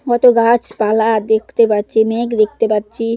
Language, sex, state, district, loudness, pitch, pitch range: Bengali, female, West Bengal, Paschim Medinipur, -14 LUFS, 225 Hz, 220-235 Hz